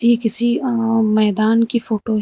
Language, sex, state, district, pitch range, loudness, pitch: Hindi, female, Uttar Pradesh, Lucknow, 220-235 Hz, -16 LUFS, 225 Hz